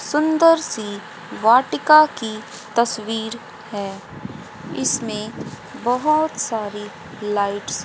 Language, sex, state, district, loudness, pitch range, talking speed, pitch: Hindi, female, Haryana, Rohtak, -20 LUFS, 210-270 Hz, 85 wpm, 220 Hz